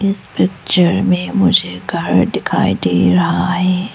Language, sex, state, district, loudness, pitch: Hindi, female, Arunachal Pradesh, Lower Dibang Valley, -15 LUFS, 180 Hz